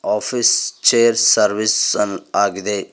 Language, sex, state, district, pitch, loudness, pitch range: Kannada, male, Karnataka, Koppal, 110 Hz, -16 LUFS, 105-115 Hz